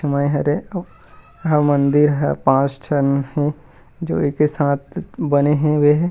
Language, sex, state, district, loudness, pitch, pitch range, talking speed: Chhattisgarhi, male, Chhattisgarh, Rajnandgaon, -18 LUFS, 145 Hz, 140-150 Hz, 155 wpm